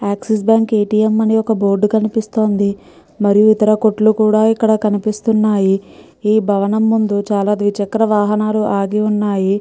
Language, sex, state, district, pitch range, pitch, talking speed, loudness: Telugu, female, Telangana, Nalgonda, 205-220 Hz, 215 Hz, 110 wpm, -15 LUFS